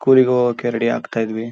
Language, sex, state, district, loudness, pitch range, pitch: Kannada, male, Karnataka, Shimoga, -18 LUFS, 115-125 Hz, 120 Hz